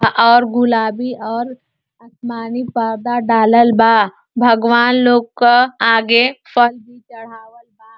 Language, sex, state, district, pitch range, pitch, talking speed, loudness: Bhojpuri, female, Uttar Pradesh, Ghazipur, 225-245 Hz, 235 Hz, 120 wpm, -13 LUFS